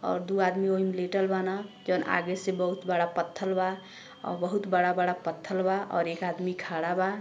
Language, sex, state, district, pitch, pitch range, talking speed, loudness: Bhojpuri, female, Uttar Pradesh, Gorakhpur, 185 Hz, 175-190 Hz, 200 wpm, -29 LUFS